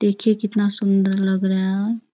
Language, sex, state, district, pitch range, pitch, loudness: Hindi, female, Bihar, Bhagalpur, 195-215 Hz, 200 Hz, -20 LUFS